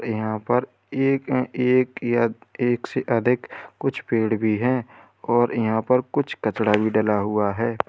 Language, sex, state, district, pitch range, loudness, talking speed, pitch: Hindi, male, Uttar Pradesh, Lalitpur, 110-125 Hz, -22 LUFS, 160 wpm, 120 Hz